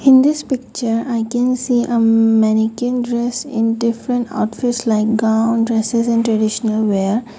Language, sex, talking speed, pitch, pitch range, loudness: English, female, 155 wpm, 230 Hz, 220-245 Hz, -16 LUFS